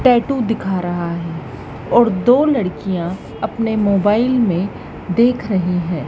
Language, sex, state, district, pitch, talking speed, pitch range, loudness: Hindi, female, Madhya Pradesh, Dhar, 200 Hz, 130 wpm, 175-235 Hz, -17 LUFS